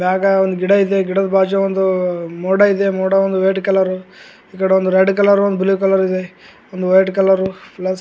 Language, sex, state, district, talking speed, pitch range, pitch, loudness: Kannada, male, Karnataka, Gulbarga, 180 wpm, 185-195 Hz, 190 Hz, -15 LUFS